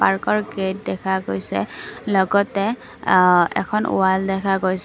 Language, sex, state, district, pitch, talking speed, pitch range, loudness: Assamese, female, Assam, Kamrup Metropolitan, 190 Hz, 125 wpm, 180-200 Hz, -20 LUFS